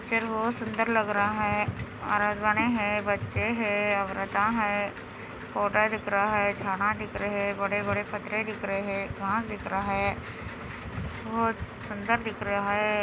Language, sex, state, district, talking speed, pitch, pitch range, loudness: Hindi, female, Andhra Pradesh, Anantapur, 150 wpm, 210 Hz, 200-220 Hz, -28 LUFS